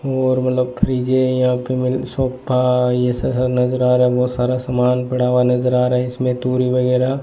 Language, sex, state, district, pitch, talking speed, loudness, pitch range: Hindi, male, Rajasthan, Bikaner, 125 Hz, 215 wpm, -17 LUFS, 125-130 Hz